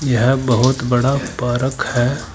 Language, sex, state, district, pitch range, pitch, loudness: Hindi, male, Uttar Pradesh, Saharanpur, 120-130 Hz, 125 Hz, -17 LUFS